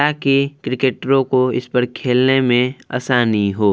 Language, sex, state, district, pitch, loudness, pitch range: Hindi, male, Bihar, Vaishali, 130 Hz, -17 LUFS, 125-135 Hz